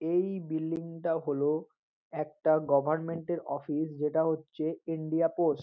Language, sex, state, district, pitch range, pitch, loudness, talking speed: Bengali, male, West Bengal, North 24 Parganas, 155-165 Hz, 160 Hz, -31 LUFS, 140 wpm